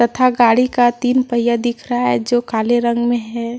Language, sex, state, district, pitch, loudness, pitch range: Hindi, female, Jharkhand, Deoghar, 240 Hz, -16 LUFS, 235-245 Hz